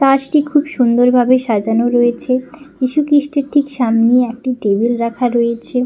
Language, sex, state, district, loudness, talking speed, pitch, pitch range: Bengali, female, West Bengal, Paschim Medinipur, -14 LUFS, 135 wpm, 250 Hz, 235-280 Hz